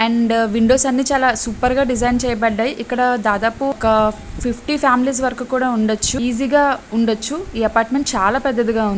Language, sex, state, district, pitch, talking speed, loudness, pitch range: Telugu, female, Andhra Pradesh, Srikakulam, 245 Hz, 175 wpm, -17 LUFS, 225-265 Hz